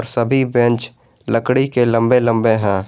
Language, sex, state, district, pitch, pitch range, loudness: Hindi, male, Jharkhand, Garhwa, 120 Hz, 115-125 Hz, -16 LUFS